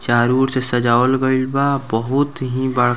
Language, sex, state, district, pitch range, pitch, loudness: Bhojpuri, male, Bihar, Muzaffarpur, 120-135 Hz, 130 Hz, -17 LUFS